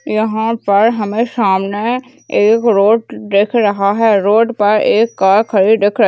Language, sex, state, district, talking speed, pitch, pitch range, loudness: Hindi, female, Uttarakhand, Uttarkashi, 170 wpm, 215 Hz, 205-230 Hz, -13 LUFS